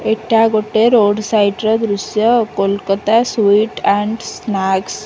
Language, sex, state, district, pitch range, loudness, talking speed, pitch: Odia, female, Odisha, Khordha, 200-225 Hz, -15 LUFS, 130 wpm, 215 Hz